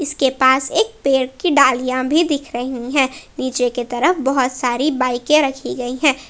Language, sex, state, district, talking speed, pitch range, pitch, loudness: Hindi, female, Jharkhand, Palamu, 180 wpm, 255-295 Hz, 265 Hz, -17 LUFS